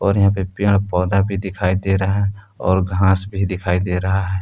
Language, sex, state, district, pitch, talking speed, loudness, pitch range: Hindi, male, Jharkhand, Palamu, 95 Hz, 230 wpm, -19 LUFS, 95-100 Hz